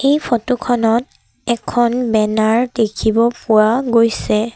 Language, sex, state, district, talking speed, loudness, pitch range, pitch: Assamese, female, Assam, Sonitpur, 105 wpm, -16 LUFS, 220-245 Hz, 235 Hz